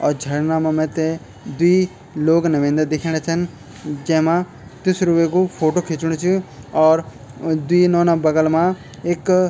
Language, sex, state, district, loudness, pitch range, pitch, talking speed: Garhwali, male, Uttarakhand, Tehri Garhwal, -18 LUFS, 155-175 Hz, 160 Hz, 140 wpm